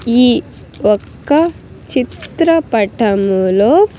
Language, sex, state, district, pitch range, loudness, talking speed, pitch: Telugu, female, Andhra Pradesh, Sri Satya Sai, 205-325 Hz, -14 LUFS, 45 wpm, 240 Hz